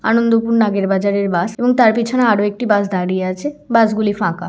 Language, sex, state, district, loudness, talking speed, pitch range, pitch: Bengali, female, West Bengal, Kolkata, -16 LUFS, 200 wpm, 200-230 Hz, 215 Hz